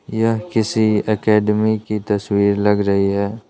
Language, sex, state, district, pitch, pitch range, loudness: Hindi, male, Arunachal Pradesh, Lower Dibang Valley, 105 Hz, 100-110 Hz, -17 LUFS